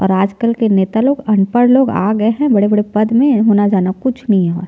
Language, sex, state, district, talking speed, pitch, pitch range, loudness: Hindi, female, Chhattisgarh, Jashpur, 230 wpm, 215 Hz, 195-240 Hz, -13 LUFS